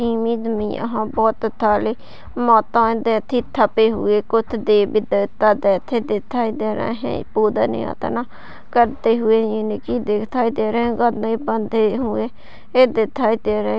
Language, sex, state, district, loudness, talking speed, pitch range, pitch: Hindi, female, Maharashtra, Sindhudurg, -19 LUFS, 105 wpm, 215-235 Hz, 220 Hz